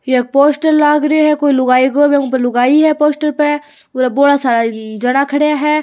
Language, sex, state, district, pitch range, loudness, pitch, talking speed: Hindi, female, Rajasthan, Churu, 255-300 Hz, -12 LUFS, 285 Hz, 205 wpm